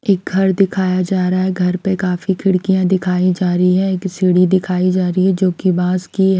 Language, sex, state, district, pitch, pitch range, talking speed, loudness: Hindi, female, Himachal Pradesh, Shimla, 185 Hz, 180-190 Hz, 225 wpm, -16 LUFS